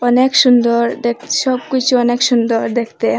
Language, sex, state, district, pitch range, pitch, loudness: Bengali, female, Assam, Hailakandi, 235-255 Hz, 245 Hz, -14 LUFS